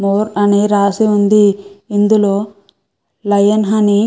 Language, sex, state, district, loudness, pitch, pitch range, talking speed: Telugu, female, Andhra Pradesh, Guntur, -13 LUFS, 205 Hz, 200-210 Hz, 120 wpm